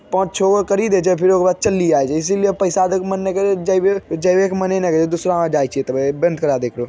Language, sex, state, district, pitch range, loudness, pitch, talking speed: Magahi, male, Bihar, Jamui, 165-195 Hz, -17 LUFS, 185 Hz, 260 wpm